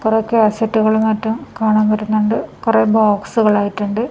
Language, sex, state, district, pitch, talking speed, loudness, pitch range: Malayalam, female, Kerala, Kasaragod, 220 Hz, 115 wpm, -16 LUFS, 215-225 Hz